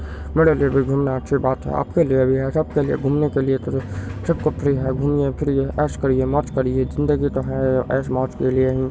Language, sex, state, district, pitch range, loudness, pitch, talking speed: Hindi, male, Bihar, Supaul, 130-140 Hz, -20 LUFS, 135 Hz, 150 wpm